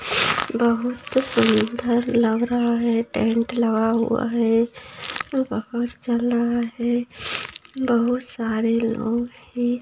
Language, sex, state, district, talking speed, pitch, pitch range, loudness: Hindi, female, Bihar, Sitamarhi, 105 wpm, 235 Hz, 230-245 Hz, -22 LUFS